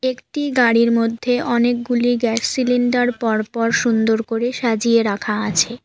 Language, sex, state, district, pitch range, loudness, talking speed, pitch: Bengali, female, West Bengal, Alipurduar, 230-245 Hz, -18 LUFS, 135 wpm, 235 Hz